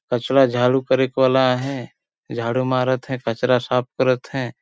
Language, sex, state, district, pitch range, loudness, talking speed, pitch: Sadri, male, Chhattisgarh, Jashpur, 125-130 Hz, -20 LUFS, 155 wpm, 130 Hz